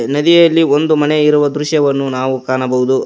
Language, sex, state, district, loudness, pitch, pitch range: Kannada, male, Karnataka, Koppal, -12 LUFS, 145 Hz, 130-155 Hz